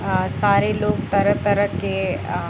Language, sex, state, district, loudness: Hindi, female, Bihar, Sitamarhi, -20 LUFS